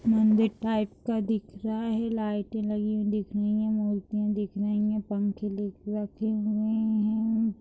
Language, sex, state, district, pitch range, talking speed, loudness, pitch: Hindi, female, Maharashtra, Dhule, 210-220 Hz, 165 wpm, -28 LUFS, 215 Hz